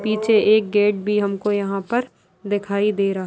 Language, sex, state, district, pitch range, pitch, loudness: Hindi, female, Bihar, Jamui, 200-215 Hz, 205 Hz, -20 LUFS